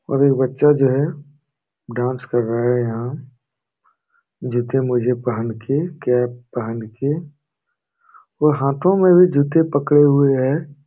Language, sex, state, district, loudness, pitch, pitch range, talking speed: Hindi, male, Jharkhand, Jamtara, -18 LUFS, 135 Hz, 125-150 Hz, 140 wpm